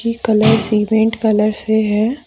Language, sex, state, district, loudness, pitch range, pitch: Hindi, female, Jharkhand, Deoghar, -15 LUFS, 215-225 Hz, 220 Hz